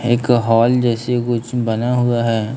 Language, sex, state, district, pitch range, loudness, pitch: Hindi, male, Maharashtra, Gondia, 115-125 Hz, -17 LUFS, 120 Hz